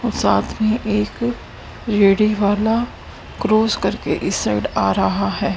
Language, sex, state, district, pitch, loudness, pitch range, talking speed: Hindi, female, Haryana, Rohtak, 210 Hz, -18 LUFS, 190-225 Hz, 110 wpm